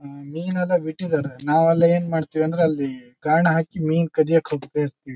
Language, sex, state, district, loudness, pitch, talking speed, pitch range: Kannada, male, Karnataka, Shimoga, -21 LUFS, 160 Hz, 165 wpm, 145-165 Hz